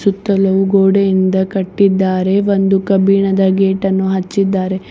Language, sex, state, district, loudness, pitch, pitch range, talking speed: Kannada, female, Karnataka, Bidar, -13 LUFS, 195 Hz, 190-195 Hz, 85 wpm